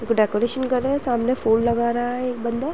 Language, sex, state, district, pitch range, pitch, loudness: Hindi, female, Uttar Pradesh, Jyotiba Phule Nagar, 235-255 Hz, 240 Hz, -22 LUFS